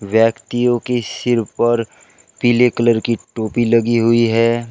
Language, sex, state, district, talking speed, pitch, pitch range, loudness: Hindi, male, Uttar Pradesh, Shamli, 140 wpm, 115 Hz, 115-120 Hz, -16 LUFS